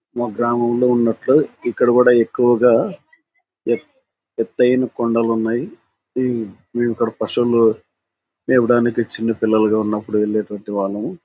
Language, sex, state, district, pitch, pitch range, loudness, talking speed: Telugu, male, Andhra Pradesh, Anantapur, 120 Hz, 110-125 Hz, -18 LUFS, 100 wpm